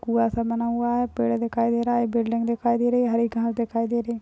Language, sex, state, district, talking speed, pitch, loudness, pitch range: Hindi, female, Chhattisgarh, Kabirdham, 315 wpm, 235 Hz, -24 LUFS, 230-235 Hz